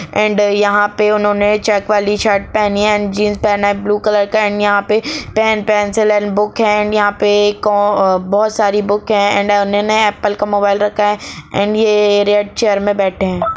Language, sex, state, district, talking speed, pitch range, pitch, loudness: Hindi, female, Bihar, Gopalganj, 210 wpm, 205-210 Hz, 205 Hz, -14 LUFS